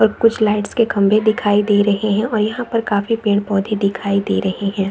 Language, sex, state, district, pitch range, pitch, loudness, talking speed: Hindi, female, Chhattisgarh, Raigarh, 200-220 Hz, 210 Hz, -17 LUFS, 235 wpm